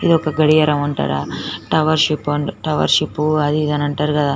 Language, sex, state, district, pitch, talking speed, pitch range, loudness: Telugu, female, Telangana, Nalgonda, 150 Hz, 150 wpm, 145-155 Hz, -17 LUFS